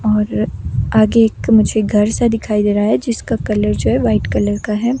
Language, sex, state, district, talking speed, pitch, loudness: Hindi, female, Himachal Pradesh, Shimla, 215 wpm, 210 Hz, -15 LUFS